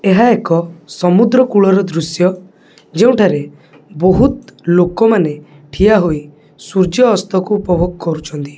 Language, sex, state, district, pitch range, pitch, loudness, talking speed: Odia, male, Odisha, Khordha, 160-205 Hz, 180 Hz, -13 LUFS, 100 wpm